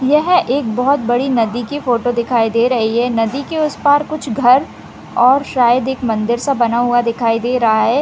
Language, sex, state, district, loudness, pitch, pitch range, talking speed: Hindi, female, Chhattisgarh, Raigarh, -15 LUFS, 245 Hz, 235-275 Hz, 210 wpm